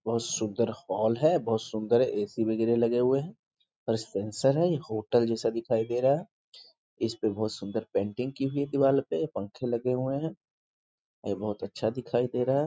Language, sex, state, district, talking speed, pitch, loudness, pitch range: Hindi, male, Bihar, East Champaran, 210 wpm, 120 Hz, -29 LUFS, 110-135 Hz